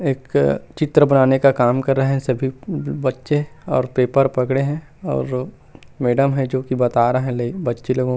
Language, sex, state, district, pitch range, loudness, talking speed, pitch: Chhattisgarhi, male, Chhattisgarh, Rajnandgaon, 125-135 Hz, -19 LUFS, 190 wpm, 130 Hz